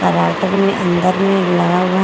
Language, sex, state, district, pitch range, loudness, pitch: Hindi, female, Jharkhand, Garhwa, 175-195 Hz, -15 LUFS, 185 Hz